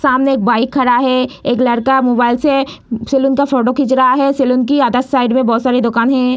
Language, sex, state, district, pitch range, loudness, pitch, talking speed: Hindi, female, Bihar, Lakhisarai, 245-270 Hz, -13 LUFS, 255 Hz, 225 wpm